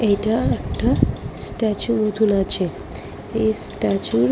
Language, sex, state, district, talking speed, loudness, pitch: Bengali, female, West Bengal, Malda, 110 wpm, -21 LUFS, 200 Hz